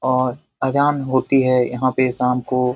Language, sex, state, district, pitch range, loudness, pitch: Hindi, male, Bihar, Jamui, 125-130 Hz, -19 LUFS, 130 Hz